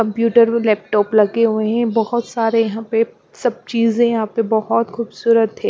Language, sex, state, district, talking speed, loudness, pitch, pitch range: Hindi, female, Punjab, Pathankot, 180 wpm, -17 LUFS, 225 Hz, 220-235 Hz